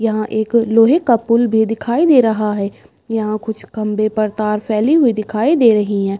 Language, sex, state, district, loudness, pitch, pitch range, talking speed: Hindi, female, Uttar Pradesh, Budaun, -15 LUFS, 220 Hz, 215-235 Hz, 205 wpm